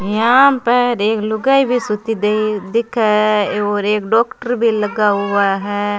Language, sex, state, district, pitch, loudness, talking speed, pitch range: Rajasthani, female, Rajasthan, Churu, 215 Hz, -15 LUFS, 150 wpm, 205-235 Hz